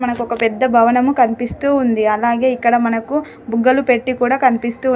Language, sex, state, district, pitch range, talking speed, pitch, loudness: Telugu, female, Telangana, Adilabad, 235-255 Hz, 180 wpm, 245 Hz, -15 LUFS